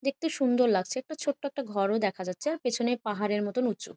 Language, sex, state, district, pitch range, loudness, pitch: Bengali, female, West Bengal, Malda, 210-280 Hz, -29 LUFS, 245 Hz